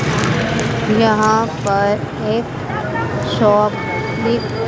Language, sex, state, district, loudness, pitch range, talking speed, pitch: Hindi, female, Madhya Pradesh, Dhar, -17 LUFS, 205-220 Hz, 65 wpm, 215 Hz